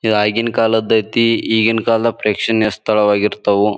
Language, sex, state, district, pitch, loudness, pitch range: Kannada, male, Karnataka, Bijapur, 110 Hz, -15 LUFS, 105-115 Hz